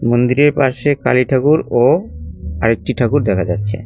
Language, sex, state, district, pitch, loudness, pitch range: Bengali, male, West Bengal, Cooch Behar, 120 Hz, -15 LUFS, 100-135 Hz